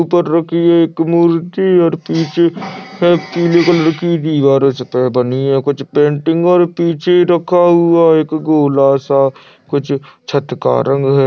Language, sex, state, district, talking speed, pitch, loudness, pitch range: Hindi, male, Goa, North and South Goa, 150 wpm, 165 Hz, -13 LUFS, 140-170 Hz